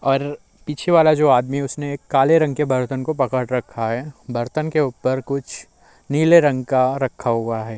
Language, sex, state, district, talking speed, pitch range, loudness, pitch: Hindi, male, Uttar Pradesh, Muzaffarnagar, 185 wpm, 125-150 Hz, -19 LUFS, 135 Hz